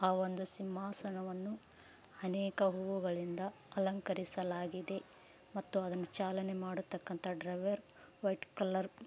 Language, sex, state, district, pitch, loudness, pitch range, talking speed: Kannada, female, Karnataka, Raichur, 190 Hz, -40 LUFS, 185-195 Hz, 85 wpm